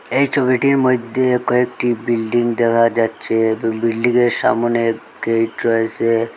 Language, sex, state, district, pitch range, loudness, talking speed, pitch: Bengali, male, Assam, Hailakandi, 115-125 Hz, -17 LUFS, 120 wpm, 115 Hz